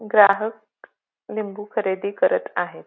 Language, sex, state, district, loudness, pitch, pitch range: Marathi, female, Maharashtra, Pune, -22 LUFS, 210 Hz, 200-215 Hz